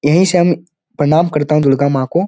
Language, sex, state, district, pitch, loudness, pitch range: Hindi, male, Bihar, Jamui, 155 Hz, -14 LUFS, 145-175 Hz